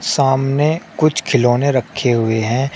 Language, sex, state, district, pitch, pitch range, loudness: Hindi, male, Uttar Pradesh, Shamli, 135 Hz, 120-150 Hz, -16 LUFS